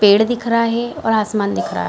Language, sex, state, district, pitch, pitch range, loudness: Hindi, female, Bihar, Gaya, 220 Hz, 205-230 Hz, -17 LUFS